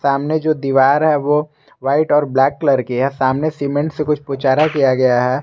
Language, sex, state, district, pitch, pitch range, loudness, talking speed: Hindi, male, Jharkhand, Garhwa, 140 Hz, 135-150 Hz, -16 LUFS, 210 wpm